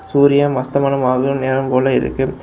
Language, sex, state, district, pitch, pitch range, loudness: Tamil, male, Tamil Nadu, Kanyakumari, 135 Hz, 130-140 Hz, -16 LUFS